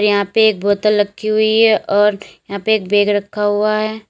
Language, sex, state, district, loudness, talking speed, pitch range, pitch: Hindi, female, Uttar Pradesh, Lalitpur, -15 LUFS, 220 wpm, 205-215 Hz, 210 Hz